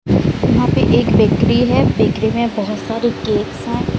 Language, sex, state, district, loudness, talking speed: Hindi, male, Odisha, Sambalpur, -15 LUFS, 165 wpm